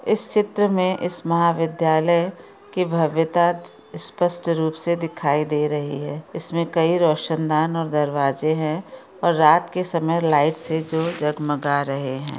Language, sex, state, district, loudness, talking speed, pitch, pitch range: Hindi, female, Chhattisgarh, Raigarh, -21 LUFS, 150 wpm, 165 Hz, 150-170 Hz